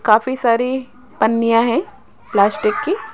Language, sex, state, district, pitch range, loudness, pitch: Hindi, female, Rajasthan, Jaipur, 230-260 Hz, -17 LUFS, 245 Hz